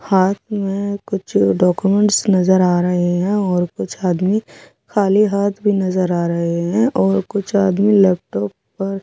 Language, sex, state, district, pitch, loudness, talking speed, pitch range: Hindi, female, Bihar, Kaimur, 195 Hz, -17 LUFS, 155 wpm, 180-200 Hz